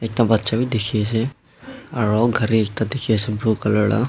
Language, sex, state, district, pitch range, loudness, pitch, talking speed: Nagamese, male, Nagaland, Dimapur, 110-120 Hz, -20 LUFS, 110 Hz, 160 wpm